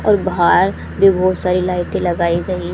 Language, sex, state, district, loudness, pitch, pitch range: Hindi, female, Haryana, Charkhi Dadri, -16 LUFS, 180 Hz, 175-185 Hz